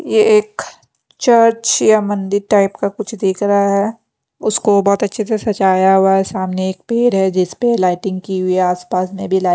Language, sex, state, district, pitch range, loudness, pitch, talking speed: Hindi, female, Punjab, Pathankot, 190-220 Hz, -15 LUFS, 200 Hz, 205 wpm